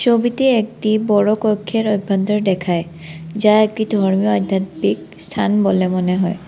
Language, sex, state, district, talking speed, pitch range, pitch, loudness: Bengali, female, Assam, Kamrup Metropolitan, 130 wpm, 185-215 Hz, 205 Hz, -17 LUFS